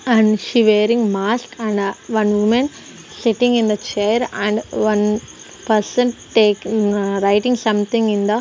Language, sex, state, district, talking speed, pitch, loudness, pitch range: English, female, Punjab, Kapurthala, 150 wpm, 215 Hz, -17 LUFS, 210-230 Hz